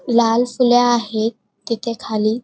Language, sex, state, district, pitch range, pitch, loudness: Marathi, female, Maharashtra, Pune, 220-240 Hz, 230 Hz, -18 LUFS